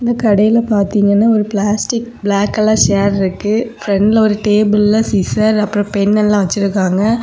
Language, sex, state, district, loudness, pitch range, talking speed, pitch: Tamil, female, Tamil Nadu, Kanyakumari, -13 LUFS, 200-220 Hz, 140 wpm, 210 Hz